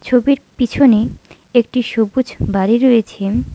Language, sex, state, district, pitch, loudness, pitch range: Bengali, female, West Bengal, Alipurduar, 240 Hz, -15 LUFS, 225-255 Hz